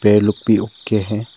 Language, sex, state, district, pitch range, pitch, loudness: Hindi, male, Arunachal Pradesh, Papum Pare, 105-110 Hz, 105 Hz, -17 LUFS